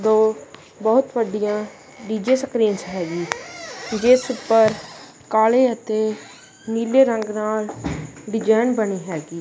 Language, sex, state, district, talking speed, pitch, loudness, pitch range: Punjabi, female, Punjab, Kapurthala, 100 wpm, 220 Hz, -20 LUFS, 210-235 Hz